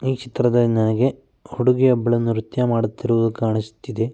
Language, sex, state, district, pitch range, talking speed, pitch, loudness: Kannada, male, Karnataka, Mysore, 115-125 Hz, 100 wpm, 120 Hz, -20 LUFS